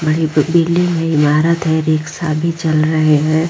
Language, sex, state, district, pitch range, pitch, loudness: Hindi, female, Bihar, Vaishali, 155-165 Hz, 160 Hz, -14 LUFS